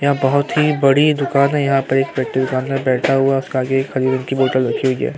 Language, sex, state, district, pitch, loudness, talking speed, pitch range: Hindi, male, Uttar Pradesh, Hamirpur, 135 Hz, -16 LUFS, 255 wpm, 130-140 Hz